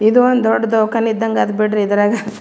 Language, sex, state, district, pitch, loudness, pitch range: Kannada, female, Karnataka, Gulbarga, 220 Hz, -15 LUFS, 210-225 Hz